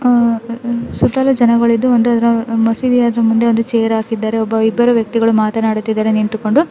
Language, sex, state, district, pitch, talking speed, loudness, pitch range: Kannada, female, Karnataka, Dharwad, 230 Hz, 135 wpm, -14 LUFS, 225-235 Hz